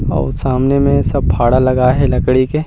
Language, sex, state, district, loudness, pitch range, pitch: Chhattisgarhi, male, Chhattisgarh, Rajnandgaon, -14 LUFS, 125-140 Hz, 130 Hz